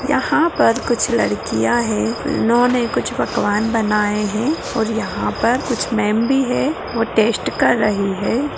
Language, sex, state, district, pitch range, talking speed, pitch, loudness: Hindi, female, Bihar, Purnia, 210-250 Hz, 160 wpm, 230 Hz, -18 LUFS